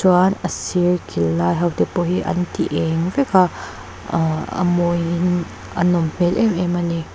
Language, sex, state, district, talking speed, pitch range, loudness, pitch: Mizo, female, Mizoram, Aizawl, 200 wpm, 165-180 Hz, -19 LUFS, 175 Hz